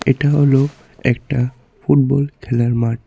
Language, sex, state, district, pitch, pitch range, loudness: Bengali, male, Tripura, West Tripura, 135 Hz, 120-140 Hz, -17 LUFS